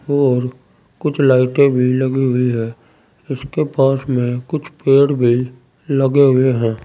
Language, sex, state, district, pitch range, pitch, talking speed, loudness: Hindi, male, Uttar Pradesh, Saharanpur, 125-140 Hz, 130 Hz, 140 wpm, -16 LUFS